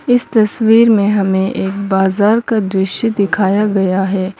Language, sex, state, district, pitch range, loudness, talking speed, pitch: Hindi, female, Mizoram, Aizawl, 190-220 Hz, -13 LUFS, 150 wpm, 200 Hz